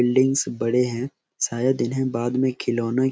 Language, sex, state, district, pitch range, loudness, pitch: Hindi, male, Bihar, Araria, 120-130 Hz, -23 LUFS, 125 Hz